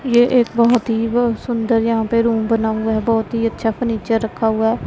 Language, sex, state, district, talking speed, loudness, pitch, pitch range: Hindi, female, Punjab, Pathankot, 235 wpm, -17 LUFS, 230 Hz, 225-235 Hz